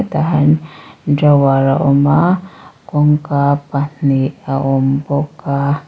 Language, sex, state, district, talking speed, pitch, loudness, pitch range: Mizo, female, Mizoram, Aizawl, 135 wpm, 145 Hz, -14 LUFS, 140-150 Hz